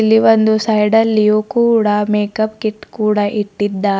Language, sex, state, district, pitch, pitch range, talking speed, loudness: Kannada, female, Karnataka, Bidar, 215 Hz, 210-220 Hz, 135 wpm, -14 LUFS